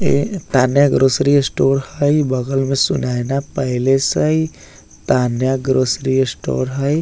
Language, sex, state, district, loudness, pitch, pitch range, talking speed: Bajjika, male, Bihar, Vaishali, -17 LUFS, 135 Hz, 130-140 Hz, 120 wpm